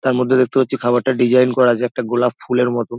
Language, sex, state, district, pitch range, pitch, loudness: Bengali, male, West Bengal, Dakshin Dinajpur, 120-130 Hz, 125 Hz, -16 LUFS